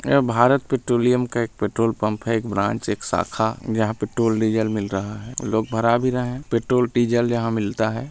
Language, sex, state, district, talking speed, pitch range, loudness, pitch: Hindi, male, Chhattisgarh, Sarguja, 215 wpm, 110-120 Hz, -22 LUFS, 115 Hz